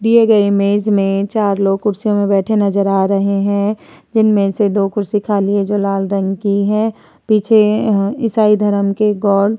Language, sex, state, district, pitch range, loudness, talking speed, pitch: Hindi, female, Uttar Pradesh, Muzaffarnagar, 200-215 Hz, -14 LUFS, 190 wpm, 205 Hz